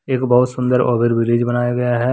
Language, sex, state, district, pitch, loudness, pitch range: Hindi, male, Jharkhand, Deoghar, 125 Hz, -16 LUFS, 120-125 Hz